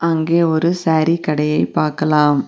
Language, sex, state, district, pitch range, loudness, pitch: Tamil, female, Tamil Nadu, Nilgiris, 150-165 Hz, -16 LUFS, 160 Hz